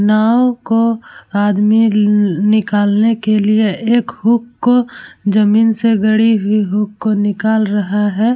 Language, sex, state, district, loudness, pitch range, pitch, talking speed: Hindi, female, Bihar, Vaishali, -14 LUFS, 205-225 Hz, 215 Hz, 135 wpm